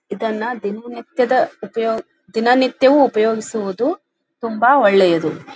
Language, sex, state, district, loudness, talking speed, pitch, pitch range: Kannada, female, Karnataka, Dharwad, -17 LUFS, 75 wpm, 225 Hz, 210-250 Hz